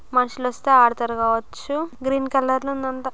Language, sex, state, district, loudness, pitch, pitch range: Telugu, female, Andhra Pradesh, Guntur, -21 LUFS, 260 Hz, 250-270 Hz